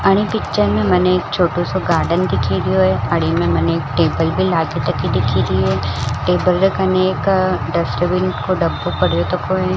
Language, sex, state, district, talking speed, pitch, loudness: Marwari, female, Rajasthan, Churu, 180 wpm, 160 Hz, -17 LUFS